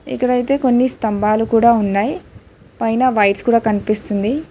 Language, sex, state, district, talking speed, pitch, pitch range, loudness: Telugu, female, Telangana, Hyderabad, 135 wpm, 230 Hz, 210-250 Hz, -16 LUFS